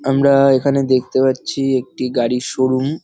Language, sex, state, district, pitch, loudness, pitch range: Bengali, male, West Bengal, North 24 Parganas, 130 Hz, -16 LUFS, 130-135 Hz